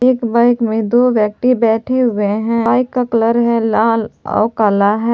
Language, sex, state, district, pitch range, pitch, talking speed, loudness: Hindi, female, Jharkhand, Palamu, 220-245 Hz, 230 Hz, 185 wpm, -14 LUFS